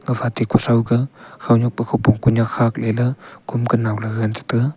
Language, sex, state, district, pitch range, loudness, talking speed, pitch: Wancho, male, Arunachal Pradesh, Longding, 115-125 Hz, -19 LUFS, 225 wpm, 120 Hz